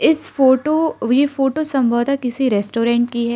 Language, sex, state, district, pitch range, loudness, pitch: Hindi, female, Arunachal Pradesh, Lower Dibang Valley, 235-275 Hz, -17 LUFS, 260 Hz